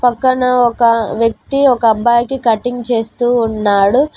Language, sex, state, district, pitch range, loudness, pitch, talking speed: Telugu, female, Telangana, Mahabubabad, 230-250 Hz, -13 LUFS, 235 Hz, 115 wpm